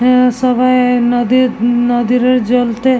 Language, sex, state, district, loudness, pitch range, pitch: Bengali, female, West Bengal, Jalpaiguri, -12 LUFS, 240-255 Hz, 250 Hz